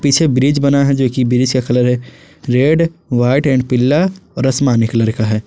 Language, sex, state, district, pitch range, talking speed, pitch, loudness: Hindi, male, Jharkhand, Garhwa, 125-140 Hz, 220 wpm, 130 Hz, -14 LUFS